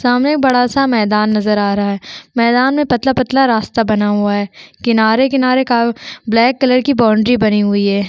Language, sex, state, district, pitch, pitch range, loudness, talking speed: Hindi, female, Chhattisgarh, Sukma, 235 Hz, 210-255 Hz, -13 LUFS, 170 wpm